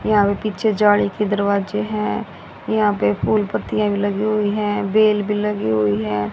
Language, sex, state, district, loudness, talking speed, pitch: Hindi, female, Haryana, Rohtak, -19 LUFS, 190 wpm, 205 Hz